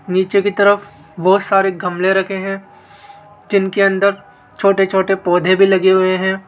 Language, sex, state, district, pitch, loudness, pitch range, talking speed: Hindi, male, Rajasthan, Jaipur, 195 Hz, -15 LUFS, 190-200 Hz, 155 wpm